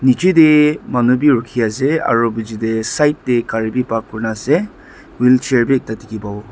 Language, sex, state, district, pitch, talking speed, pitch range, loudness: Nagamese, male, Nagaland, Dimapur, 125 Hz, 165 wpm, 110-150 Hz, -15 LUFS